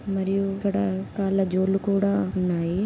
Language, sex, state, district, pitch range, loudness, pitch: Telugu, female, Telangana, Nalgonda, 190-200 Hz, -24 LUFS, 195 Hz